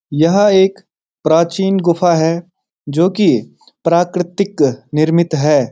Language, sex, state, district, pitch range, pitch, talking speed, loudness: Hindi, male, Uttarakhand, Uttarkashi, 160-190 Hz, 170 Hz, 105 wpm, -14 LUFS